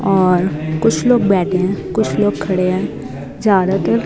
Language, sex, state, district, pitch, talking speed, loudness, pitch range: Hindi, female, Himachal Pradesh, Shimla, 185 Hz, 165 wpm, -16 LUFS, 180-200 Hz